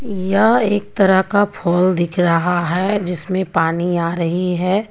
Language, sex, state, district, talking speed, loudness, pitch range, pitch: Hindi, female, Jharkhand, Ranchi, 160 wpm, -17 LUFS, 175-200 Hz, 185 Hz